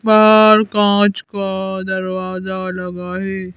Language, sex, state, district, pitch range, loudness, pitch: Hindi, female, Madhya Pradesh, Bhopal, 185-210 Hz, -15 LUFS, 190 Hz